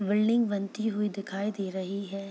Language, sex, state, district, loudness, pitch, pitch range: Hindi, female, Bihar, Purnia, -30 LUFS, 200 Hz, 195-210 Hz